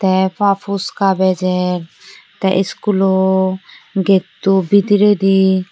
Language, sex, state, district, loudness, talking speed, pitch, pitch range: Chakma, female, Tripura, Unakoti, -15 LUFS, 85 wpm, 190 Hz, 185-195 Hz